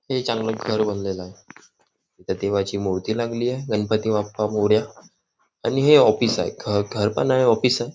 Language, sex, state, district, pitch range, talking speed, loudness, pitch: Marathi, male, Maharashtra, Nagpur, 100-120 Hz, 165 wpm, -21 LUFS, 110 Hz